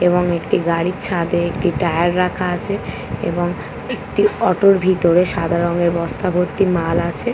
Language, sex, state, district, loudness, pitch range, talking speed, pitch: Bengali, female, West Bengal, Paschim Medinipur, -18 LUFS, 170-185 Hz, 155 wpm, 175 Hz